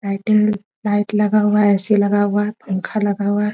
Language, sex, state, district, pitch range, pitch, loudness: Hindi, female, Bihar, Araria, 205-210 Hz, 205 Hz, -17 LUFS